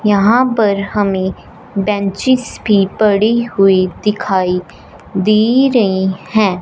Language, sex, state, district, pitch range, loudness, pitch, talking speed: Hindi, female, Punjab, Fazilka, 195-220 Hz, -14 LUFS, 205 Hz, 100 wpm